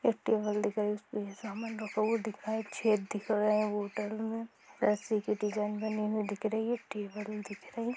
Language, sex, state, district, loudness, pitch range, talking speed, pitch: Hindi, female, Chhattisgarh, Kabirdham, -34 LUFS, 210-220 Hz, 235 wpm, 215 Hz